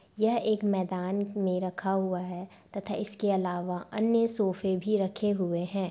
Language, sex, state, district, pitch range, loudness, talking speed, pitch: Hindi, female, Bihar, Madhepura, 185-210 Hz, -29 LUFS, 160 wpm, 195 Hz